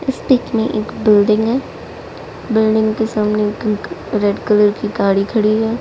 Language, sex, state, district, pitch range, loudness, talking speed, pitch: Hindi, female, Delhi, New Delhi, 210-225 Hz, -16 LUFS, 165 wpm, 215 Hz